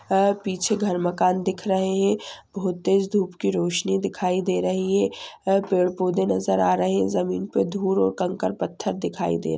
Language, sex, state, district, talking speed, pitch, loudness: Hindi, female, Jharkhand, Sahebganj, 195 wpm, 185 Hz, -23 LUFS